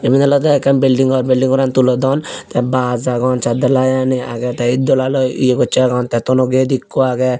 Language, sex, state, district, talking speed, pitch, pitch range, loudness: Chakma, male, Tripura, Unakoti, 210 wpm, 130 Hz, 125-130 Hz, -14 LUFS